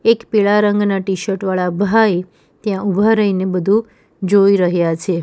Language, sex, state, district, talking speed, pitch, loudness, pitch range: Gujarati, female, Gujarat, Valsad, 150 wpm, 195 Hz, -16 LUFS, 185-210 Hz